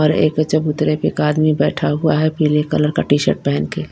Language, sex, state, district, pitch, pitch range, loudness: Hindi, female, Bihar, Patna, 150 Hz, 150-155 Hz, -17 LUFS